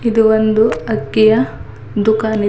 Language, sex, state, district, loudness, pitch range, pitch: Kannada, female, Karnataka, Bidar, -14 LUFS, 205-220 Hz, 220 Hz